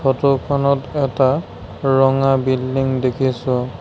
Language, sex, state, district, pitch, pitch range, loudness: Assamese, male, Assam, Sonitpur, 135 Hz, 130-135 Hz, -18 LUFS